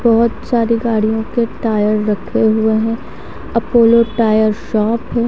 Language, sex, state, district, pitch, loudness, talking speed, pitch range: Hindi, female, Haryana, Charkhi Dadri, 225 Hz, -15 LUFS, 125 wpm, 220-235 Hz